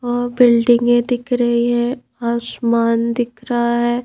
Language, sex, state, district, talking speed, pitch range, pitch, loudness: Hindi, female, Madhya Pradesh, Bhopal, 135 wpm, 235-245 Hz, 240 Hz, -17 LUFS